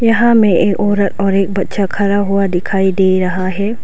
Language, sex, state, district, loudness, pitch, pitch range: Hindi, female, Arunachal Pradesh, Lower Dibang Valley, -14 LUFS, 200 Hz, 190-205 Hz